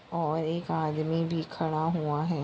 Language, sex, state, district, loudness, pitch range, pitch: Hindi, female, Maharashtra, Chandrapur, -30 LUFS, 155-165 Hz, 160 Hz